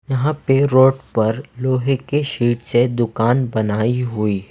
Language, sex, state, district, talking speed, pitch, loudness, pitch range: Hindi, male, Himachal Pradesh, Shimla, 145 wpm, 125 Hz, -18 LUFS, 115-135 Hz